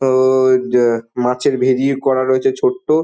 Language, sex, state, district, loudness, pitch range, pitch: Bengali, male, West Bengal, Dakshin Dinajpur, -15 LUFS, 125-135 Hz, 130 Hz